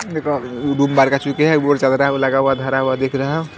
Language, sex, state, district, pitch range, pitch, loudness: Hindi, male, Haryana, Rohtak, 135-145 Hz, 140 Hz, -17 LUFS